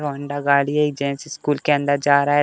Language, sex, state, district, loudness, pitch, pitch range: Hindi, male, Uttar Pradesh, Deoria, -20 LUFS, 145 Hz, 140-145 Hz